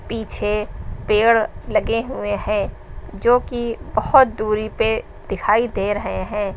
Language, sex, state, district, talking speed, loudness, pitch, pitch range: Hindi, female, Uttar Pradesh, Lucknow, 130 wpm, -20 LUFS, 220 Hz, 210-230 Hz